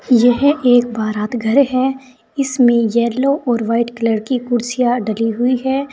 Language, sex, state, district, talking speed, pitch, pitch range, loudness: Hindi, female, Uttar Pradesh, Saharanpur, 150 wpm, 245 Hz, 230-260 Hz, -16 LUFS